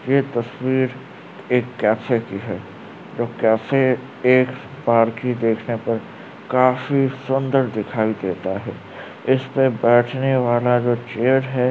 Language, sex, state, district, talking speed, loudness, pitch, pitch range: Hindi, male, Uttar Pradesh, Varanasi, 125 wpm, -20 LUFS, 125 Hz, 115-130 Hz